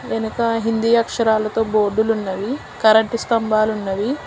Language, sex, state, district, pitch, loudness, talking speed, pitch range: Telugu, female, Telangana, Hyderabad, 220 Hz, -18 LUFS, 85 wpm, 215-230 Hz